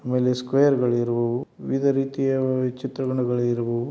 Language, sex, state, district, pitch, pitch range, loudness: Kannada, male, Karnataka, Dharwad, 125 Hz, 120-135 Hz, -23 LUFS